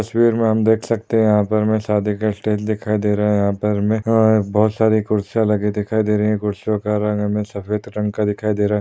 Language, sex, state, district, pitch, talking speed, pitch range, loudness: Hindi, male, Maharashtra, Aurangabad, 105 Hz, 245 wpm, 105-110 Hz, -18 LUFS